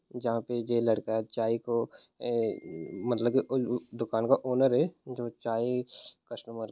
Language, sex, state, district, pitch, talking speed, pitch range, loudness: Hindi, male, Bihar, Muzaffarpur, 120 Hz, 150 wpm, 115-125 Hz, -31 LUFS